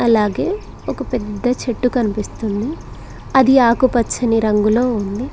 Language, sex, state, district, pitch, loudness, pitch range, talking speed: Telugu, female, Telangana, Mahabubabad, 240 Hz, -17 LUFS, 215-255 Hz, 100 wpm